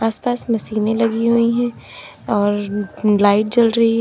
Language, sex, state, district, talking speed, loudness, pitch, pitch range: Hindi, female, Uttar Pradesh, Lalitpur, 165 wpm, -17 LUFS, 225 Hz, 205-230 Hz